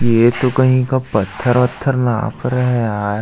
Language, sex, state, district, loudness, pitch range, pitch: Hindi, male, Chhattisgarh, Jashpur, -16 LUFS, 115-130 Hz, 125 Hz